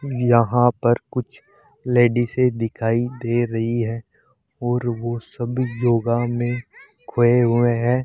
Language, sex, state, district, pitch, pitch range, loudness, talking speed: Hindi, male, Rajasthan, Jaipur, 120 Hz, 115-120 Hz, -20 LUFS, 125 wpm